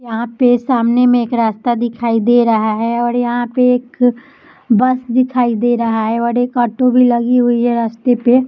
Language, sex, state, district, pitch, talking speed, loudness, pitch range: Hindi, female, Bihar, Samastipur, 240 Hz, 200 wpm, -14 LUFS, 235-250 Hz